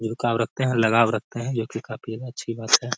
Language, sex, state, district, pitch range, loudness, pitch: Hindi, male, Bihar, Gaya, 110-120 Hz, -24 LUFS, 115 Hz